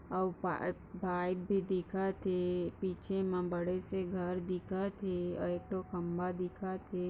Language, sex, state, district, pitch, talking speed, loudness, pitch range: Hindi, female, Maharashtra, Dhule, 185 Hz, 150 wpm, -37 LUFS, 180-190 Hz